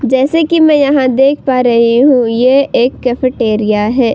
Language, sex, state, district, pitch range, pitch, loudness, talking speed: Hindi, female, Uttar Pradesh, Budaun, 240-275 Hz, 255 Hz, -10 LUFS, 175 wpm